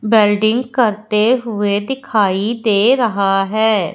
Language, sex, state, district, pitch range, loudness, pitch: Hindi, female, Madhya Pradesh, Umaria, 205-235 Hz, -15 LUFS, 215 Hz